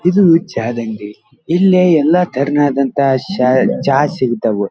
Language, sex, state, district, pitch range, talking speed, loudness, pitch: Kannada, male, Karnataka, Dharwad, 120-175 Hz, 115 wpm, -14 LUFS, 140 Hz